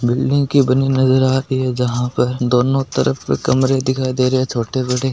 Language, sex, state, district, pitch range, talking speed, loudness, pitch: Marwari, male, Rajasthan, Nagaur, 125-130 Hz, 210 wpm, -17 LUFS, 130 Hz